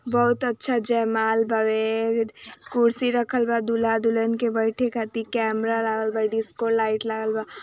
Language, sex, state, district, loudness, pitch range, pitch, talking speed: Hindi, female, Uttar Pradesh, Ghazipur, -23 LUFS, 220-235 Hz, 225 Hz, 150 wpm